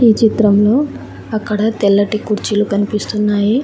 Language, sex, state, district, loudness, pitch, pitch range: Telugu, female, Telangana, Mahabubabad, -15 LUFS, 210 Hz, 205-220 Hz